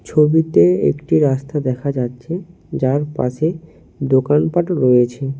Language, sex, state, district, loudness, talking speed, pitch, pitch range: Bengali, male, West Bengal, Cooch Behar, -17 LUFS, 100 wpm, 145 Hz, 130-160 Hz